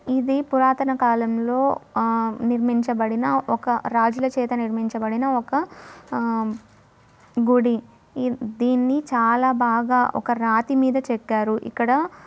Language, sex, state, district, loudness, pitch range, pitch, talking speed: Telugu, female, Andhra Pradesh, Guntur, -22 LUFS, 225-260 Hz, 240 Hz, 100 wpm